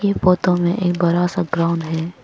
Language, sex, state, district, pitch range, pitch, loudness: Hindi, female, Arunachal Pradesh, Papum Pare, 170-180 Hz, 175 Hz, -18 LUFS